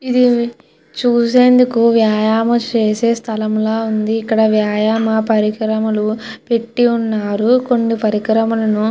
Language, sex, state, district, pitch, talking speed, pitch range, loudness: Telugu, female, Andhra Pradesh, Chittoor, 225 Hz, 95 wpm, 215-235 Hz, -15 LUFS